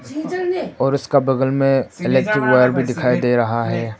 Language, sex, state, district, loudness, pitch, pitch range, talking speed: Hindi, male, Arunachal Pradesh, Papum Pare, -18 LUFS, 135 Hz, 125-140 Hz, 165 wpm